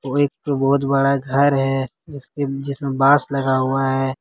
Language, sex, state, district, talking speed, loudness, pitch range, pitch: Hindi, male, Jharkhand, Ranchi, 185 wpm, -19 LUFS, 135-140 Hz, 135 Hz